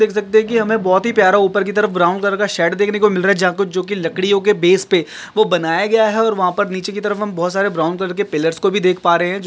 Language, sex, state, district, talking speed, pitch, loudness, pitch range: Hindi, male, Maharashtra, Nagpur, 330 wpm, 200 Hz, -16 LUFS, 180-210 Hz